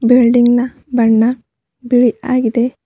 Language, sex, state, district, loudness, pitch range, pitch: Kannada, female, Karnataka, Bidar, -13 LUFS, 235-250 Hz, 245 Hz